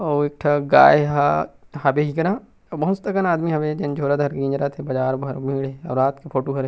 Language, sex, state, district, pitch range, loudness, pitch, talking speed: Chhattisgarhi, male, Chhattisgarh, Rajnandgaon, 135-155 Hz, -20 LUFS, 145 Hz, 250 wpm